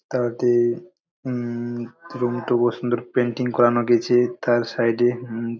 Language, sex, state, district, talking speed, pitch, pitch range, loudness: Bengali, male, West Bengal, Jalpaiguri, 120 wpm, 120 Hz, 120-125 Hz, -22 LUFS